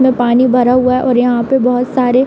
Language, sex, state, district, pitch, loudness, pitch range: Hindi, female, Uttar Pradesh, Hamirpur, 250 Hz, -12 LUFS, 245-255 Hz